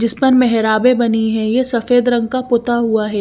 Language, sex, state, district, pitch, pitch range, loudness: Hindi, female, Chandigarh, Chandigarh, 235 Hz, 225-250 Hz, -15 LUFS